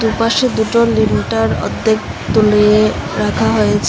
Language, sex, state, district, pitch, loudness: Bengali, female, Assam, Hailakandi, 215 Hz, -14 LUFS